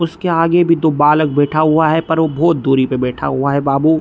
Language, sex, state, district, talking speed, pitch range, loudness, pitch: Hindi, male, Bihar, East Champaran, 225 wpm, 140-165 Hz, -14 LUFS, 155 Hz